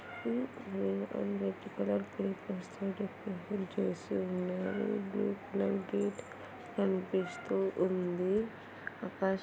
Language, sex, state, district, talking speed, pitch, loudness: Telugu, female, Andhra Pradesh, Anantapur, 95 wpm, 185 Hz, -36 LUFS